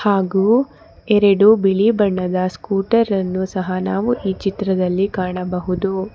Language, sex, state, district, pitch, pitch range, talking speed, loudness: Kannada, female, Karnataka, Bangalore, 195 Hz, 185-205 Hz, 105 wpm, -18 LUFS